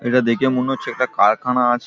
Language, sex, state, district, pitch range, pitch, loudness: Bengali, male, West Bengal, Paschim Medinipur, 120-130 Hz, 125 Hz, -18 LUFS